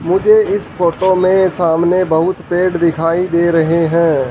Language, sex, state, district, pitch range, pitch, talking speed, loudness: Hindi, male, Haryana, Charkhi Dadri, 165-185 Hz, 175 Hz, 155 wpm, -13 LUFS